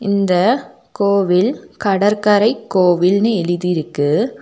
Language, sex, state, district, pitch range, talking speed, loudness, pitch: Tamil, female, Tamil Nadu, Nilgiris, 180-210 Hz, 70 wpm, -16 LUFS, 200 Hz